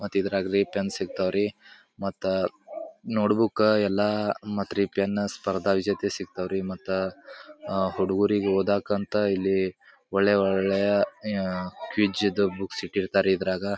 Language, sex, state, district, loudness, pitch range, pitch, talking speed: Kannada, male, Karnataka, Bijapur, -26 LUFS, 95-105 Hz, 100 Hz, 130 wpm